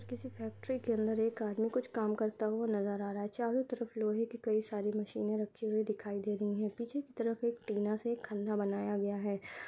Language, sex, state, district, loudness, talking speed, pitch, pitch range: Hindi, female, Uttar Pradesh, Budaun, -36 LUFS, 235 wpm, 215 Hz, 205-230 Hz